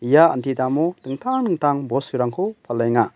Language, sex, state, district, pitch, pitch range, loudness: Garo, male, Meghalaya, West Garo Hills, 135 Hz, 125-170 Hz, -21 LUFS